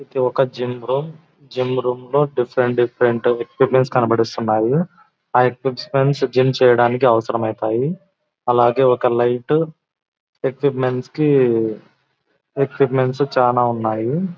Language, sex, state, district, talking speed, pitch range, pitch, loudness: Telugu, male, Andhra Pradesh, Anantapur, 100 wpm, 120-140 Hz, 125 Hz, -18 LUFS